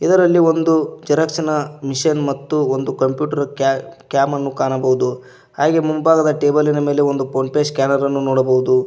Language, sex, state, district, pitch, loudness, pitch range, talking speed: Kannada, male, Karnataka, Koppal, 140 Hz, -17 LUFS, 135-155 Hz, 135 wpm